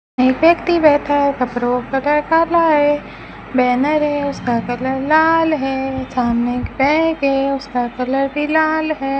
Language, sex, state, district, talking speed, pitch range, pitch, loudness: Hindi, female, Rajasthan, Bikaner, 155 wpm, 255-310 Hz, 275 Hz, -16 LUFS